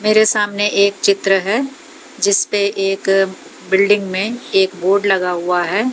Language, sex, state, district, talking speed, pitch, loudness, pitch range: Hindi, female, Haryana, Jhajjar, 150 wpm, 200 Hz, -16 LUFS, 195-215 Hz